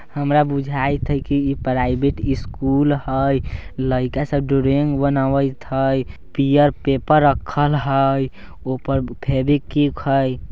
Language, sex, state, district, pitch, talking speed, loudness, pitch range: Bajjika, male, Bihar, Vaishali, 135 Hz, 115 wpm, -19 LUFS, 130-140 Hz